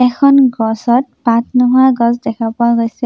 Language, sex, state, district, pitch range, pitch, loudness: Assamese, female, Assam, Sonitpur, 230-255 Hz, 240 Hz, -12 LUFS